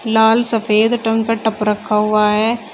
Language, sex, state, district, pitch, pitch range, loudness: Hindi, female, Uttar Pradesh, Shamli, 220 Hz, 215-225 Hz, -15 LUFS